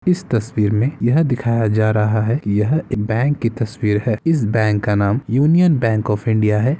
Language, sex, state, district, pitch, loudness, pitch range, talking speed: Hindi, male, Bihar, Samastipur, 115 Hz, -17 LUFS, 105-130 Hz, 205 wpm